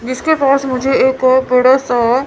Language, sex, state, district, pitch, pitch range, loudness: Hindi, female, Chandigarh, Chandigarh, 260 Hz, 255-270 Hz, -13 LUFS